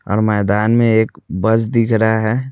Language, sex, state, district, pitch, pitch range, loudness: Hindi, male, Chhattisgarh, Raipur, 110 Hz, 105-115 Hz, -15 LUFS